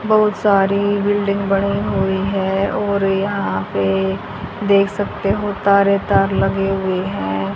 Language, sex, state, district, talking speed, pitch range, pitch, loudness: Hindi, female, Haryana, Rohtak, 135 wpm, 190-200 Hz, 200 Hz, -17 LUFS